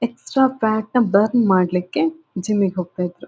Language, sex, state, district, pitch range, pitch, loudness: Kannada, female, Karnataka, Dakshina Kannada, 185-240 Hz, 210 Hz, -19 LUFS